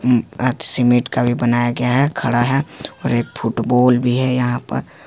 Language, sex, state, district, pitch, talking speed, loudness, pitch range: Hindi, male, Jharkhand, Ranchi, 125 Hz, 200 wpm, -17 LUFS, 120-125 Hz